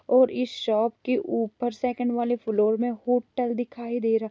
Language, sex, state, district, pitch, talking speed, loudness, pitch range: Hindi, female, Chhattisgarh, Raigarh, 240 Hz, 180 wpm, -26 LUFS, 225-245 Hz